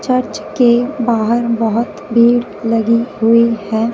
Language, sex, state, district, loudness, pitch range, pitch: Hindi, female, Punjab, Fazilka, -14 LUFS, 225-240 Hz, 235 Hz